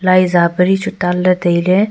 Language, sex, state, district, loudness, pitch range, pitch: Wancho, female, Arunachal Pradesh, Longding, -14 LUFS, 180-185 Hz, 180 Hz